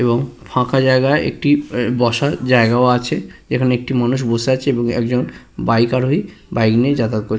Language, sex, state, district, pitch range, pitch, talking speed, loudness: Bengali, male, West Bengal, Purulia, 120-130 Hz, 125 Hz, 160 wpm, -17 LUFS